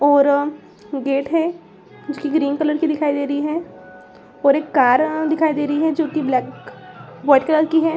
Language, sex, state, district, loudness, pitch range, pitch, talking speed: Hindi, female, Bihar, Saran, -18 LUFS, 280-315 Hz, 295 Hz, 210 wpm